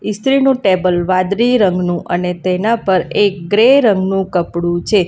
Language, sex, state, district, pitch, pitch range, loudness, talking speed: Gujarati, female, Gujarat, Valsad, 190 Hz, 180-215 Hz, -14 LUFS, 140 wpm